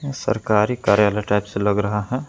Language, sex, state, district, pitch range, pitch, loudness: Hindi, male, Jharkhand, Palamu, 105-125 Hz, 105 Hz, -20 LUFS